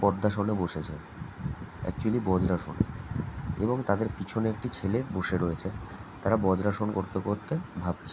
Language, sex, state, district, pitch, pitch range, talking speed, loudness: Bengali, male, West Bengal, Jhargram, 100 Hz, 90-105 Hz, 120 wpm, -30 LUFS